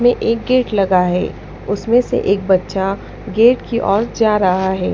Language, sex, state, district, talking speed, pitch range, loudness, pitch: Hindi, female, Punjab, Pathankot, 180 wpm, 190-235 Hz, -16 LUFS, 205 Hz